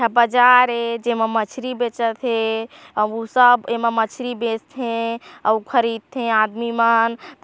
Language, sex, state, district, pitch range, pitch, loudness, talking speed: Chhattisgarhi, female, Chhattisgarh, Korba, 225-245 Hz, 230 Hz, -19 LUFS, 120 wpm